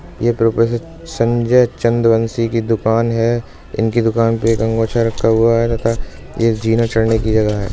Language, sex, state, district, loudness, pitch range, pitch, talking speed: Bundeli, male, Uttar Pradesh, Budaun, -16 LUFS, 110-115 Hz, 115 Hz, 185 wpm